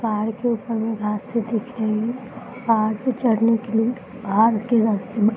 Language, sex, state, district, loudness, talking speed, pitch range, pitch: Hindi, female, Bihar, Araria, -22 LUFS, 190 wpm, 220-240 Hz, 225 Hz